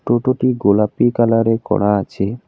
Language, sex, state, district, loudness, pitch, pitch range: Bengali, male, West Bengal, Alipurduar, -16 LUFS, 115 Hz, 105-120 Hz